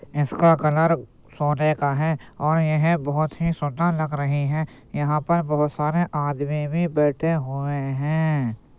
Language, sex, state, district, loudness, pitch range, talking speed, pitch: Hindi, male, Uttar Pradesh, Jyotiba Phule Nagar, -22 LUFS, 145-160 Hz, 155 wpm, 150 Hz